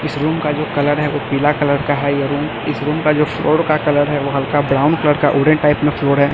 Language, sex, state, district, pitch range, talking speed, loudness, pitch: Hindi, male, Chhattisgarh, Raipur, 140-150 Hz, 295 wpm, -16 LUFS, 145 Hz